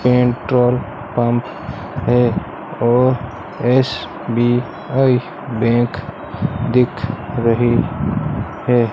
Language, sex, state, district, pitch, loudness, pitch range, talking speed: Hindi, male, Rajasthan, Bikaner, 120 Hz, -17 LUFS, 120-125 Hz, 60 wpm